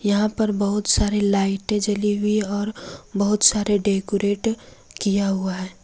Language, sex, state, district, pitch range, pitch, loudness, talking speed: Hindi, female, Jharkhand, Ranchi, 200-210 Hz, 205 Hz, -21 LUFS, 145 wpm